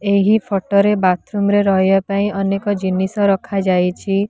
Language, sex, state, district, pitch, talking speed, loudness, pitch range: Odia, female, Odisha, Nuapada, 195 Hz, 155 wpm, -16 LUFS, 190-205 Hz